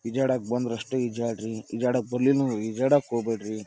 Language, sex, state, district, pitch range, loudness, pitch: Kannada, male, Karnataka, Dharwad, 115-130 Hz, -26 LUFS, 120 Hz